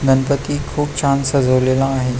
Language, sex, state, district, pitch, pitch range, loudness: Marathi, male, Maharashtra, Pune, 135 Hz, 130-140 Hz, -17 LUFS